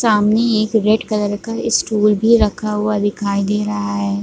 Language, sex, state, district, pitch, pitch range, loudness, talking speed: Hindi, female, Chhattisgarh, Bilaspur, 210 Hz, 205-220 Hz, -16 LUFS, 185 wpm